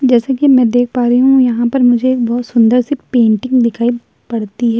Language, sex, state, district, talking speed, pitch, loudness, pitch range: Hindi, female, Uttar Pradesh, Jyotiba Phule Nagar, 210 wpm, 245 Hz, -12 LUFS, 235-255 Hz